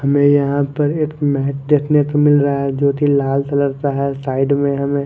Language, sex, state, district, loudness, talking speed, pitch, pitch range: Hindi, male, Chandigarh, Chandigarh, -16 LUFS, 200 wpm, 140 Hz, 140-145 Hz